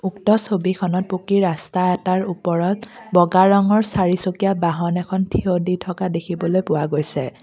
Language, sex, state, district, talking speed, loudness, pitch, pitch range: Assamese, female, Assam, Kamrup Metropolitan, 135 wpm, -19 LUFS, 185 Hz, 175-195 Hz